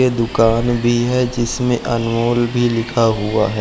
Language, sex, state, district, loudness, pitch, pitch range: Hindi, male, Uttarakhand, Uttarkashi, -17 LUFS, 120 Hz, 115-120 Hz